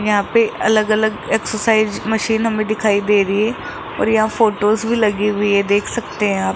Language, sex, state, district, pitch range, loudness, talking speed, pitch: Hindi, male, Rajasthan, Jaipur, 205-220 Hz, -17 LUFS, 210 wpm, 215 Hz